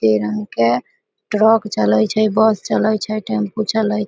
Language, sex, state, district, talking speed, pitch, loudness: Maithili, female, Bihar, Samastipur, 160 wpm, 210 Hz, -17 LUFS